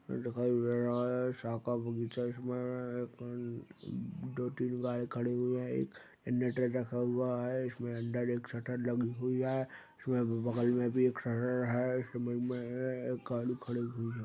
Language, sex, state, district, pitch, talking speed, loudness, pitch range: Hindi, male, Chhattisgarh, Jashpur, 120 Hz, 180 wpm, -36 LUFS, 120-125 Hz